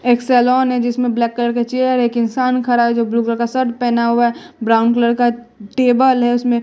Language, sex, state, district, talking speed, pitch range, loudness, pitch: Hindi, female, Bihar, West Champaran, 245 wpm, 235-250 Hz, -15 LUFS, 240 Hz